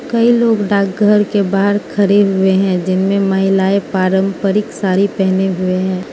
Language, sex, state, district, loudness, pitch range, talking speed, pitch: Hindi, female, Manipur, Imphal West, -14 LUFS, 190-205 Hz, 155 wpm, 195 Hz